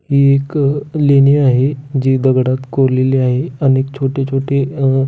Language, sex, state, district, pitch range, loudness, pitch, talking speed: Marathi, male, Maharashtra, Pune, 130-140 Hz, -14 LUFS, 135 Hz, 155 wpm